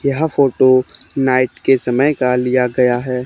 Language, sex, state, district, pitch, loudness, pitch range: Hindi, male, Haryana, Charkhi Dadri, 130 Hz, -15 LUFS, 125-135 Hz